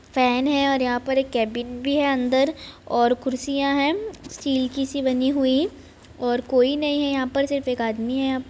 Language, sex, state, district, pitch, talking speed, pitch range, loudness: Hindi, female, Bihar, Bhagalpur, 265 Hz, 205 wpm, 250-280 Hz, -22 LUFS